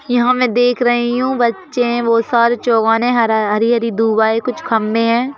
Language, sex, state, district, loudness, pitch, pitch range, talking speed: Hindi, female, Madhya Pradesh, Bhopal, -15 LUFS, 235 Hz, 225-245 Hz, 180 wpm